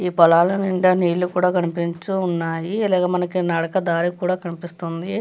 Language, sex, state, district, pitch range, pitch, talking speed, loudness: Telugu, female, Andhra Pradesh, Chittoor, 170-185 Hz, 180 Hz, 140 wpm, -20 LUFS